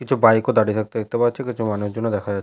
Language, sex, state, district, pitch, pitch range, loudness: Bengali, male, West Bengal, Paschim Medinipur, 110 Hz, 105-120 Hz, -20 LUFS